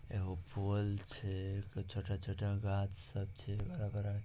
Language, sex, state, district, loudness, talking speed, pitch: Maithili, male, Bihar, Samastipur, -41 LUFS, 155 wpm, 100 Hz